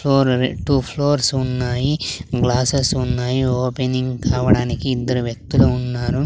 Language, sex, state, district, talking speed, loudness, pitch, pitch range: Telugu, male, Andhra Pradesh, Sri Satya Sai, 115 wpm, -19 LUFS, 125 Hz, 125-135 Hz